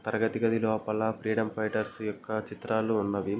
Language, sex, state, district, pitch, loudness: Telugu, male, Andhra Pradesh, Guntur, 110 Hz, -30 LUFS